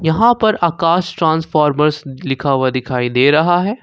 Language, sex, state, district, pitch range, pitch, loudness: Hindi, male, Jharkhand, Ranchi, 135-175 Hz, 160 Hz, -15 LUFS